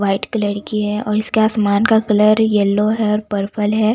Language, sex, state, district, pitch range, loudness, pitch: Hindi, female, Bihar, West Champaran, 205-220 Hz, -16 LUFS, 210 Hz